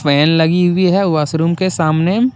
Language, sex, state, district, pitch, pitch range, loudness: Hindi, male, Jharkhand, Deoghar, 170 Hz, 160-185 Hz, -14 LUFS